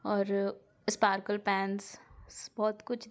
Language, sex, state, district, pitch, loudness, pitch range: Hindi, female, Jharkhand, Sahebganj, 205 Hz, -32 LUFS, 200-215 Hz